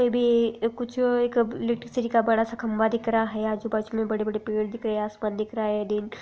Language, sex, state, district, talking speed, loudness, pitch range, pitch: Hindi, female, Bihar, Sitamarhi, 290 wpm, -26 LUFS, 215-235 Hz, 225 Hz